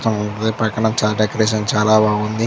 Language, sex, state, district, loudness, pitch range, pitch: Telugu, male, Andhra Pradesh, Chittoor, -17 LUFS, 105-110 Hz, 110 Hz